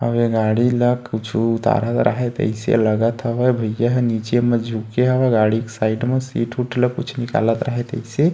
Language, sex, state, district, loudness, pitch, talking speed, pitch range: Chhattisgarhi, male, Chhattisgarh, Kabirdham, -19 LUFS, 120 Hz, 200 wpm, 110-125 Hz